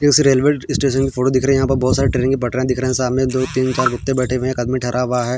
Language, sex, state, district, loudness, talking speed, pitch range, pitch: Hindi, male, Bihar, Patna, -17 LUFS, 345 wpm, 125-135 Hz, 130 Hz